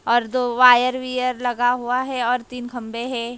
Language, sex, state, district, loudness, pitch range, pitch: Hindi, female, Maharashtra, Mumbai Suburban, -20 LUFS, 240-255 Hz, 245 Hz